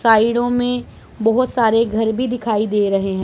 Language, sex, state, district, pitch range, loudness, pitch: Hindi, female, Punjab, Pathankot, 215-245 Hz, -17 LUFS, 225 Hz